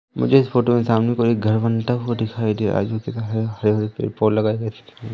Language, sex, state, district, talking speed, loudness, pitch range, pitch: Hindi, male, Madhya Pradesh, Umaria, 245 wpm, -20 LUFS, 110-120 Hz, 115 Hz